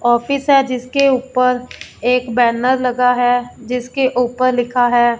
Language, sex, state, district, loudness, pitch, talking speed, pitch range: Hindi, female, Punjab, Fazilka, -16 LUFS, 250 Hz, 140 wpm, 245-255 Hz